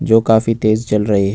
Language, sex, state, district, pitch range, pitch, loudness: Hindi, male, Jharkhand, Ranchi, 105-115 Hz, 110 Hz, -14 LUFS